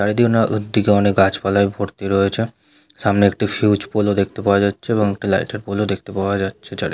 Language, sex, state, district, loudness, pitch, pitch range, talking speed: Bengali, male, West Bengal, Jhargram, -18 LUFS, 100 Hz, 100-105 Hz, 215 wpm